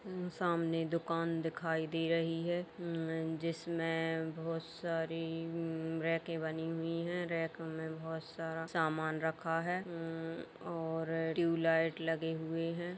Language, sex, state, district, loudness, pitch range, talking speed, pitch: Hindi, female, Uttar Pradesh, Etah, -37 LUFS, 160-165 Hz, 135 wpm, 165 Hz